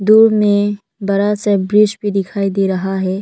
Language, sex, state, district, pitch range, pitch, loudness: Hindi, female, Arunachal Pradesh, Lower Dibang Valley, 195-210 Hz, 200 Hz, -15 LUFS